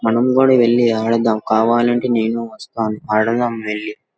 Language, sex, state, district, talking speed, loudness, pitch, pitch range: Telugu, male, Andhra Pradesh, Guntur, 100 wpm, -16 LUFS, 115 Hz, 110-120 Hz